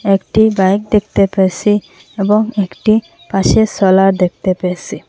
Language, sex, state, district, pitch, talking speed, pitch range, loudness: Bengali, female, Assam, Hailakandi, 200 Hz, 130 wpm, 190-215 Hz, -14 LUFS